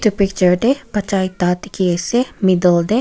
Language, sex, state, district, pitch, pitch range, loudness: Nagamese, female, Nagaland, Kohima, 195 Hz, 180-215 Hz, -16 LUFS